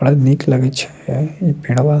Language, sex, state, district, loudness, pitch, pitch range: Bajjika, male, Bihar, Vaishali, -16 LUFS, 140 Hz, 135-150 Hz